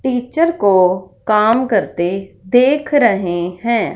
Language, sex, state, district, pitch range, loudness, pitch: Hindi, female, Punjab, Fazilka, 185-250 Hz, -15 LUFS, 210 Hz